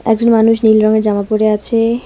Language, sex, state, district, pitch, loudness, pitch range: Bengali, female, West Bengal, Cooch Behar, 220 Hz, -12 LUFS, 215-225 Hz